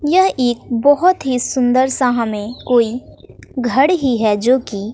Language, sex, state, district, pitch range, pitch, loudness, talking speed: Hindi, female, Bihar, West Champaran, 235-270 Hz, 250 Hz, -15 LUFS, 160 wpm